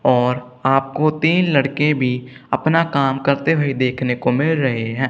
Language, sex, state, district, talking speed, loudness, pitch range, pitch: Hindi, male, Punjab, Kapurthala, 165 wpm, -18 LUFS, 125-150 Hz, 135 Hz